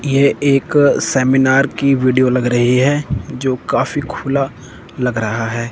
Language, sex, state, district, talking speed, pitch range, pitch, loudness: Hindi, male, Chandigarh, Chandigarh, 145 wpm, 125-140 Hz, 130 Hz, -15 LUFS